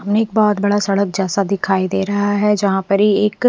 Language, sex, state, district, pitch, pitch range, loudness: Hindi, female, Punjab, Fazilka, 200 Hz, 195-210 Hz, -16 LUFS